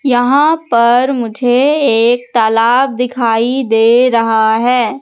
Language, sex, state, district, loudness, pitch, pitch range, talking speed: Hindi, female, Madhya Pradesh, Katni, -11 LUFS, 245 Hz, 230-260 Hz, 110 wpm